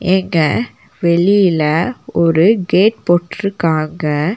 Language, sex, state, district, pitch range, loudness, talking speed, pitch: Tamil, female, Tamil Nadu, Nilgiris, 155-190 Hz, -14 LUFS, 70 wpm, 170 Hz